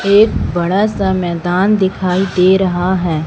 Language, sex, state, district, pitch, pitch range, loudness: Hindi, female, Madhya Pradesh, Umaria, 185 Hz, 175-195 Hz, -14 LUFS